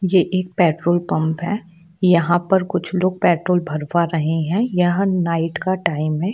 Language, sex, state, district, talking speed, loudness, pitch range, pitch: Hindi, female, Jharkhand, Jamtara, 170 wpm, -19 LUFS, 165-185 Hz, 175 Hz